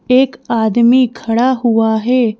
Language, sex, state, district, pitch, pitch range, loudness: Hindi, female, Madhya Pradesh, Bhopal, 235 Hz, 225-255 Hz, -13 LUFS